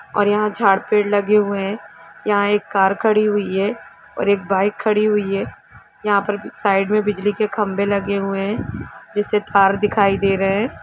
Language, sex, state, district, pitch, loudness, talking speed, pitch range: Hindi, female, Jharkhand, Jamtara, 205 Hz, -18 LUFS, 195 wpm, 195-210 Hz